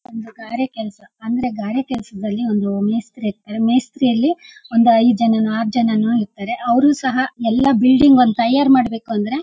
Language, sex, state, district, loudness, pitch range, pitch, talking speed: Kannada, female, Karnataka, Shimoga, -17 LUFS, 220-255 Hz, 235 Hz, 165 wpm